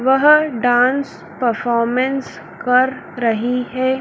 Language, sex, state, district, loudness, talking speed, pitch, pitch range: Hindi, female, Madhya Pradesh, Dhar, -17 LUFS, 90 wpm, 255 Hz, 245-265 Hz